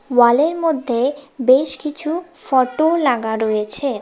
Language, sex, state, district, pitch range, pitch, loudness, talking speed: Bengali, female, West Bengal, Cooch Behar, 245-310 Hz, 275 Hz, -17 LUFS, 105 wpm